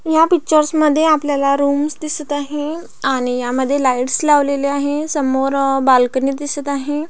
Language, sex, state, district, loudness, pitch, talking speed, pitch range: Marathi, female, Maharashtra, Pune, -16 LUFS, 285 Hz, 135 wpm, 270-300 Hz